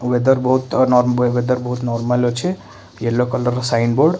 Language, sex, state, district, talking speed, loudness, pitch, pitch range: Odia, male, Odisha, Khordha, 155 wpm, -17 LUFS, 125 Hz, 120-130 Hz